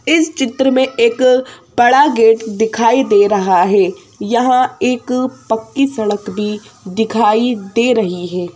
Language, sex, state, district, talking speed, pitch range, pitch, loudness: Hindi, female, Madhya Pradesh, Bhopal, 135 wpm, 210-255 Hz, 230 Hz, -14 LUFS